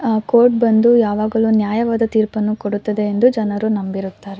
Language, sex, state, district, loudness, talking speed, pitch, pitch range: Kannada, female, Karnataka, Shimoga, -16 LUFS, 150 wpm, 215 Hz, 210-230 Hz